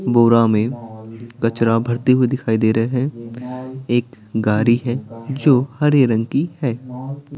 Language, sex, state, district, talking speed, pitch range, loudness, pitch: Hindi, male, Bihar, Patna, 140 wpm, 115-130 Hz, -18 LUFS, 120 Hz